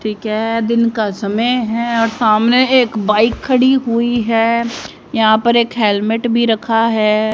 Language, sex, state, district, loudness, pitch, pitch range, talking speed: Hindi, female, Haryana, Rohtak, -14 LUFS, 230 Hz, 215-235 Hz, 165 wpm